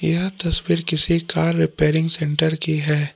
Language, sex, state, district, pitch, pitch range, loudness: Hindi, male, Jharkhand, Palamu, 160 Hz, 150-170 Hz, -17 LUFS